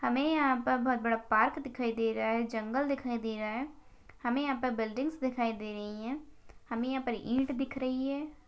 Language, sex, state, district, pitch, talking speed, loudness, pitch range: Hindi, female, Maharashtra, Chandrapur, 255 Hz, 210 wpm, -33 LUFS, 225-270 Hz